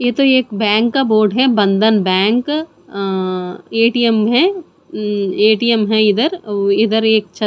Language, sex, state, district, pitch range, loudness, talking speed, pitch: Hindi, female, Chandigarh, Chandigarh, 205-245 Hz, -14 LUFS, 160 wpm, 220 Hz